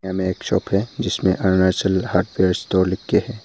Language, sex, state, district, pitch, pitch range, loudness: Hindi, male, Arunachal Pradesh, Papum Pare, 95 Hz, 95-100 Hz, -20 LUFS